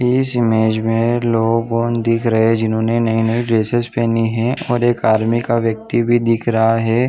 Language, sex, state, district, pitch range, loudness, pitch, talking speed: Hindi, male, Chhattisgarh, Bilaspur, 115-120 Hz, -16 LUFS, 115 Hz, 185 wpm